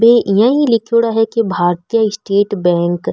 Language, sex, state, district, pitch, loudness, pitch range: Marwari, female, Rajasthan, Nagaur, 215 Hz, -14 LUFS, 195-230 Hz